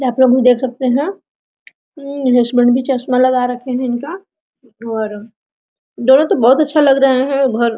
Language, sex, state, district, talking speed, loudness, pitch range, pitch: Hindi, female, Jharkhand, Sahebganj, 175 wpm, -14 LUFS, 245-275 Hz, 255 Hz